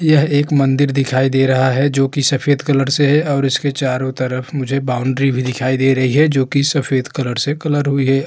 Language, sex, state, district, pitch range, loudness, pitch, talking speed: Hindi, male, Uttar Pradesh, Hamirpur, 130-145 Hz, -16 LUFS, 135 Hz, 220 wpm